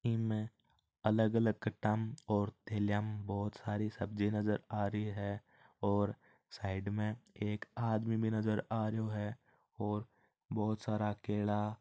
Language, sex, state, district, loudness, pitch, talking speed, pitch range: Marwari, male, Rajasthan, Churu, -37 LUFS, 105 Hz, 145 wpm, 105-110 Hz